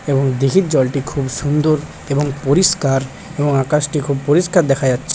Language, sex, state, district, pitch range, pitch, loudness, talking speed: Bengali, male, West Bengal, Paschim Medinipur, 135-155 Hz, 140 Hz, -16 LUFS, 150 wpm